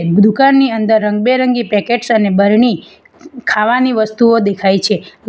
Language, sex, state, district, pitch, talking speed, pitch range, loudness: Gujarati, female, Gujarat, Valsad, 225 Hz, 115 wpm, 210-245 Hz, -12 LUFS